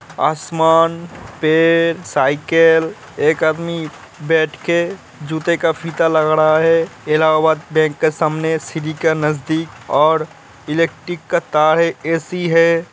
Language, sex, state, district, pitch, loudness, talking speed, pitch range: Hindi, male, Uttar Pradesh, Hamirpur, 160 Hz, -16 LUFS, 135 wpm, 155-165 Hz